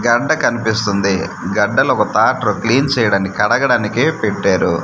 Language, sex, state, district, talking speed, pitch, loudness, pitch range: Telugu, male, Andhra Pradesh, Manyam, 110 wpm, 105 Hz, -15 LUFS, 100-115 Hz